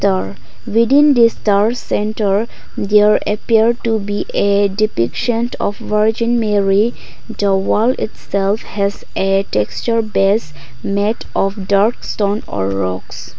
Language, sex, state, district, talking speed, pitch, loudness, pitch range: English, female, Nagaland, Kohima, 115 wpm, 205 Hz, -16 LUFS, 195-225 Hz